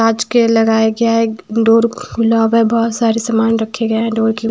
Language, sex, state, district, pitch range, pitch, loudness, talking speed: Hindi, female, Himachal Pradesh, Shimla, 225-230 Hz, 225 Hz, -14 LUFS, 215 wpm